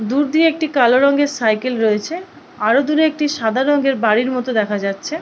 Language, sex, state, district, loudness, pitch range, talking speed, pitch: Bengali, female, West Bengal, Purulia, -16 LUFS, 220-300 Hz, 195 wpm, 270 Hz